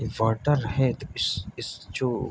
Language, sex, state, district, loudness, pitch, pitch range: Hindi, male, Bihar, Bhagalpur, -27 LUFS, 120 Hz, 110-130 Hz